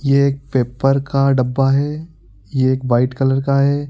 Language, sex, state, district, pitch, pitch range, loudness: Hindi, male, Bihar, Supaul, 135 Hz, 130-140 Hz, -17 LUFS